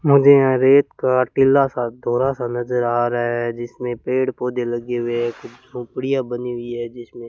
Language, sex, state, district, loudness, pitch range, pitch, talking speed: Hindi, male, Rajasthan, Bikaner, -19 LUFS, 120-130 Hz, 125 Hz, 195 wpm